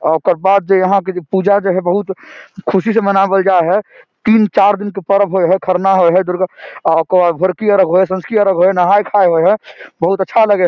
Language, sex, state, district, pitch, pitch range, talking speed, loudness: Maithili, male, Bihar, Samastipur, 195 Hz, 185-200 Hz, 235 wpm, -13 LUFS